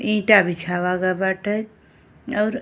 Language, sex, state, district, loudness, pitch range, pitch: Bhojpuri, female, Uttar Pradesh, Ghazipur, -20 LUFS, 185-215 Hz, 210 Hz